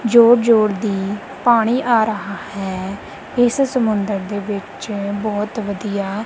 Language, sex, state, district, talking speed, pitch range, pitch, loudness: Punjabi, female, Punjab, Kapurthala, 125 wpm, 200-230 Hz, 210 Hz, -18 LUFS